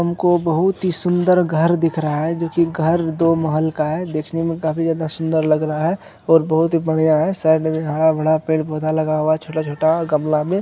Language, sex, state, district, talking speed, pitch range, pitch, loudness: Hindi, male, Bihar, Araria, 215 wpm, 155-165 Hz, 160 Hz, -18 LUFS